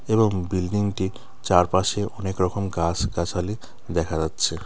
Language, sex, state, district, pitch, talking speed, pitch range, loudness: Bengali, male, West Bengal, Cooch Behar, 95 Hz, 115 wpm, 90-105 Hz, -24 LUFS